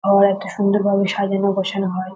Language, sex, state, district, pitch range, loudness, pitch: Bengali, female, West Bengal, North 24 Parganas, 195-200 Hz, -18 LUFS, 195 Hz